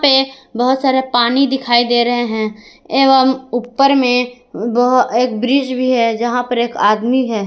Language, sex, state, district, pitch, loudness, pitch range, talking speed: Hindi, female, Jharkhand, Garhwa, 245 Hz, -14 LUFS, 240-260 Hz, 170 wpm